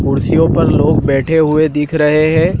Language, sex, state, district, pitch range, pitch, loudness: Hindi, male, Madhya Pradesh, Dhar, 150-160 Hz, 155 Hz, -12 LUFS